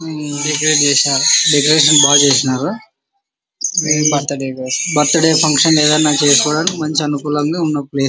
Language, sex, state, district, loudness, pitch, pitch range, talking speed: Telugu, male, Andhra Pradesh, Anantapur, -12 LUFS, 150 Hz, 145-155 Hz, 65 wpm